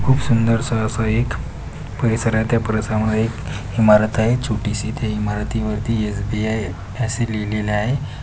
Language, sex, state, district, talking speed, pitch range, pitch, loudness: Marathi, male, Maharashtra, Pune, 130 wpm, 105-115 Hz, 110 Hz, -20 LUFS